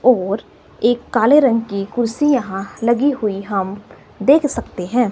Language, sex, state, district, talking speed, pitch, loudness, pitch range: Hindi, female, Himachal Pradesh, Shimla, 150 wpm, 230 Hz, -17 LUFS, 200-255 Hz